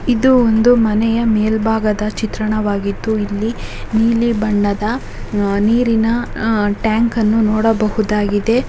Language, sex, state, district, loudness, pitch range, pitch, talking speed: Kannada, male, Karnataka, Shimoga, -16 LUFS, 210-230 Hz, 220 Hz, 85 wpm